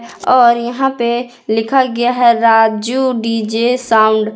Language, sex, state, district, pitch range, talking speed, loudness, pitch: Hindi, female, Jharkhand, Palamu, 225-245 Hz, 140 wpm, -13 LUFS, 235 Hz